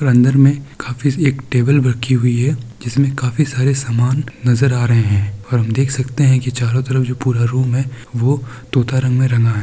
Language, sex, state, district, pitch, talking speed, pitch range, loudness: Hindi, male, Bihar, Kishanganj, 125 Hz, 210 wpm, 120-135 Hz, -16 LUFS